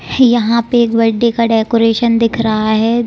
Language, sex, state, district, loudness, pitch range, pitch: Hindi, female, Bihar, Saran, -12 LUFS, 225-235 Hz, 230 Hz